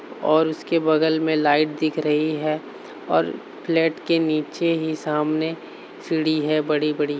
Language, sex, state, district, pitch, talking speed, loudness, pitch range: Hindi, male, Uttar Pradesh, Varanasi, 155 Hz, 140 wpm, -22 LUFS, 150-160 Hz